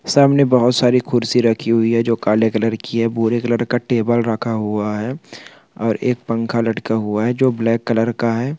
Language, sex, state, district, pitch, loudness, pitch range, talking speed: Hindi, male, Bihar, Begusarai, 115 Hz, -17 LUFS, 115-125 Hz, 210 wpm